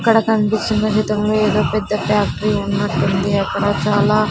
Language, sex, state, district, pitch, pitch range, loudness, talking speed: Telugu, female, Andhra Pradesh, Sri Satya Sai, 210 Hz, 200-215 Hz, -17 LUFS, 125 wpm